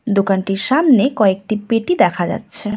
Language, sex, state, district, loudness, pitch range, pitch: Bengali, female, West Bengal, Cooch Behar, -16 LUFS, 195-230 Hz, 210 Hz